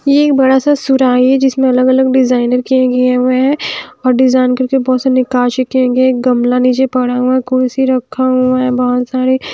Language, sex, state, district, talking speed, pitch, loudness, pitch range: Hindi, female, Haryana, Jhajjar, 205 wpm, 255 Hz, -12 LUFS, 250-260 Hz